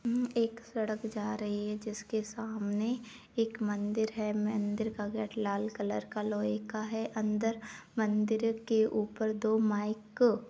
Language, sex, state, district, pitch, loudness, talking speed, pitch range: Hindi, female, Uttar Pradesh, Jyotiba Phule Nagar, 215 Hz, -34 LUFS, 155 wpm, 210-225 Hz